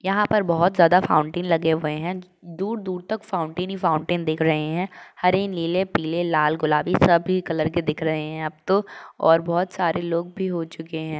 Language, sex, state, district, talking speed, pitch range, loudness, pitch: Hindi, female, Uttar Pradesh, Jalaun, 205 wpm, 160-185 Hz, -22 LUFS, 170 Hz